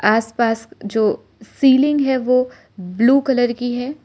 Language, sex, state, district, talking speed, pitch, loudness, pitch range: Hindi, female, Arunachal Pradesh, Lower Dibang Valley, 150 wpm, 245 Hz, -17 LUFS, 225-265 Hz